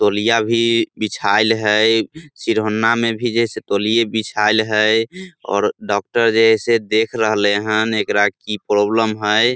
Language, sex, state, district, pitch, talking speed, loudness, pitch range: Maithili, male, Bihar, Samastipur, 110 Hz, 130 wpm, -17 LUFS, 105-115 Hz